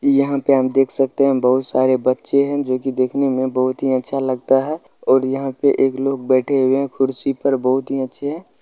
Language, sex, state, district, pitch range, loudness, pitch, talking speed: Bhojpuri, male, Bihar, Saran, 130-140 Hz, -17 LUFS, 135 Hz, 235 wpm